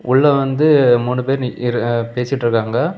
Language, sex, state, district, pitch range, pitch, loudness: Tamil, male, Tamil Nadu, Kanyakumari, 120-135 Hz, 125 Hz, -16 LUFS